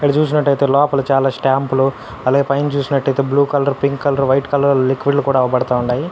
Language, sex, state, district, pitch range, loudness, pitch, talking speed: Telugu, male, Andhra Pradesh, Anantapur, 135-140 Hz, -16 LUFS, 140 Hz, 195 wpm